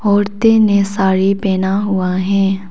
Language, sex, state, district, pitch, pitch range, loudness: Hindi, female, Arunachal Pradesh, Papum Pare, 195 Hz, 190-205 Hz, -14 LUFS